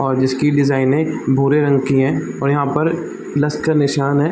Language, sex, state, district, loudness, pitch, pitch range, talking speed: Hindi, male, Jharkhand, Jamtara, -17 LUFS, 140 Hz, 135-150 Hz, 195 wpm